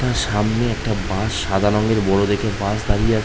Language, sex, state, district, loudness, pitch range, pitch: Bengali, male, West Bengal, Malda, -19 LUFS, 100-110 Hz, 105 Hz